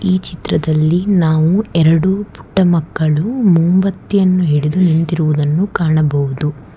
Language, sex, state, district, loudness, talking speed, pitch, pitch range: Kannada, female, Karnataka, Bangalore, -14 LUFS, 90 wpm, 170 Hz, 155-185 Hz